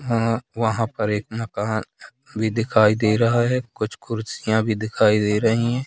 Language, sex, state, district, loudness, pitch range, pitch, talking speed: Hindi, male, Madhya Pradesh, Katni, -21 LUFS, 110-115 Hz, 110 Hz, 175 wpm